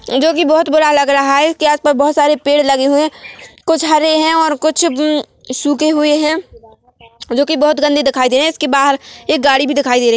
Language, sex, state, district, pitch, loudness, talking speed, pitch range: Hindi, female, Chhattisgarh, Korba, 295 Hz, -13 LUFS, 240 wpm, 275-310 Hz